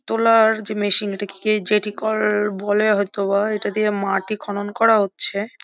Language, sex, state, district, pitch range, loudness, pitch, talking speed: Bengali, female, West Bengal, Jhargram, 200-215 Hz, -18 LUFS, 210 Hz, 160 wpm